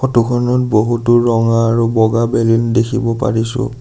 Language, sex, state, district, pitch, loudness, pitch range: Assamese, male, Assam, Sonitpur, 115 Hz, -14 LUFS, 115-120 Hz